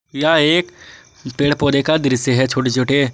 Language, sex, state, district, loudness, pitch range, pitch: Hindi, male, Jharkhand, Ranchi, -16 LUFS, 130-150 Hz, 140 Hz